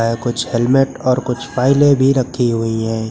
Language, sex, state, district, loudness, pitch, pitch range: Hindi, male, Uttar Pradesh, Lucknow, -16 LUFS, 125 Hz, 115-135 Hz